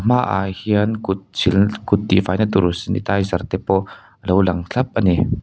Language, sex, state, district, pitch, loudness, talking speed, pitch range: Mizo, male, Mizoram, Aizawl, 100 Hz, -19 LUFS, 190 wpm, 95-110 Hz